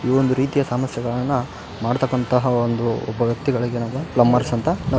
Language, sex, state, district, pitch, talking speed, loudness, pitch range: Kannada, male, Karnataka, Raichur, 125 Hz, 145 wpm, -21 LUFS, 120-135 Hz